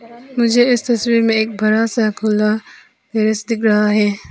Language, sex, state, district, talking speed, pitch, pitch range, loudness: Hindi, female, Arunachal Pradesh, Papum Pare, 165 wpm, 220 Hz, 215-235 Hz, -16 LUFS